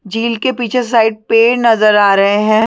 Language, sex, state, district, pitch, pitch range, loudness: Hindi, female, Chhattisgarh, Sarguja, 225 Hz, 215-235 Hz, -12 LUFS